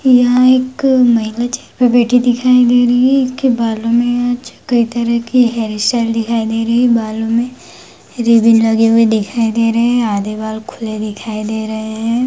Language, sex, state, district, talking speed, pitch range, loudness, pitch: Hindi, female, Jharkhand, Sahebganj, 180 wpm, 225-245 Hz, -13 LUFS, 235 Hz